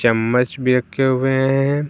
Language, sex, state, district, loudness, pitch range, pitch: Hindi, male, Uttar Pradesh, Lucknow, -18 LUFS, 125-135 Hz, 130 Hz